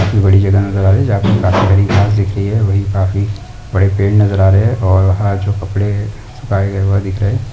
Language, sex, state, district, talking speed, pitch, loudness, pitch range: Hindi, male, Chhattisgarh, Rajnandgaon, 265 wpm, 100 Hz, -13 LUFS, 95-105 Hz